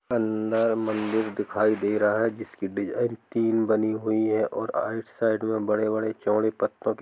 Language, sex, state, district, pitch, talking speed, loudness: Hindi, male, Jharkhand, Jamtara, 110 Hz, 170 wpm, -26 LUFS